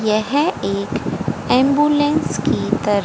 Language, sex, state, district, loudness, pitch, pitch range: Hindi, female, Haryana, Jhajjar, -18 LUFS, 255 Hz, 205-290 Hz